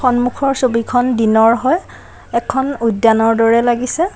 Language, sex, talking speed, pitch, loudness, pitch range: Assamese, female, 115 wpm, 240 Hz, -14 LUFS, 230-255 Hz